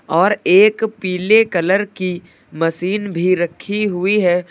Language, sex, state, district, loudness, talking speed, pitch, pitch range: Hindi, male, Uttar Pradesh, Lucknow, -16 LUFS, 135 wpm, 190 Hz, 175-210 Hz